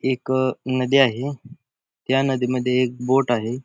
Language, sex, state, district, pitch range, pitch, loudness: Marathi, male, Maharashtra, Pune, 125-135 Hz, 130 Hz, -21 LUFS